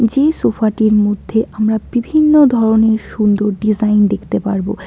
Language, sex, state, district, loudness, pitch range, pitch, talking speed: Bengali, female, West Bengal, Alipurduar, -14 LUFS, 210-230 Hz, 220 Hz, 135 wpm